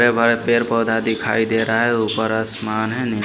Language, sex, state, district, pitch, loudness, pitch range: Hindi, male, Punjab, Pathankot, 115 Hz, -18 LUFS, 110-115 Hz